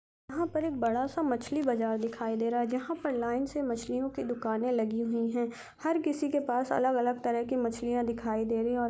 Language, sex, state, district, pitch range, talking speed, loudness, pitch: Hindi, female, Chhattisgarh, Rajnandgaon, 230-270 Hz, 230 wpm, -31 LUFS, 245 Hz